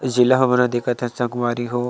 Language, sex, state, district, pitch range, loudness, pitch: Chhattisgarhi, male, Chhattisgarh, Sarguja, 120-125 Hz, -19 LUFS, 125 Hz